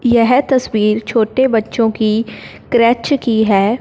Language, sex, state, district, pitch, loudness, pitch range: Hindi, female, Punjab, Fazilka, 230 Hz, -14 LUFS, 220-245 Hz